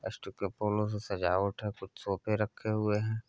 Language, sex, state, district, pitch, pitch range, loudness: Hindi, male, Uttar Pradesh, Hamirpur, 105 Hz, 100-105 Hz, -33 LUFS